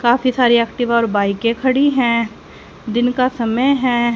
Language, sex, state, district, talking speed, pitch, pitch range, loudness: Hindi, female, Haryana, Rohtak, 160 wpm, 240 Hz, 230-255 Hz, -16 LUFS